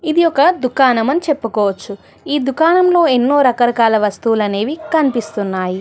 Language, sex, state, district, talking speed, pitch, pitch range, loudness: Telugu, female, Telangana, Hyderabad, 105 wpm, 255 Hz, 210-310 Hz, -14 LUFS